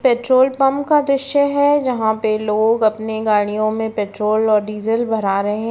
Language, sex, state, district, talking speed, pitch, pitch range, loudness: Hindi, female, Uttar Pradesh, Etah, 180 wpm, 220 Hz, 215-260 Hz, -17 LUFS